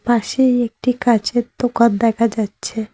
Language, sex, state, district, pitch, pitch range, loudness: Bengali, female, West Bengal, Cooch Behar, 235 Hz, 225-245 Hz, -17 LUFS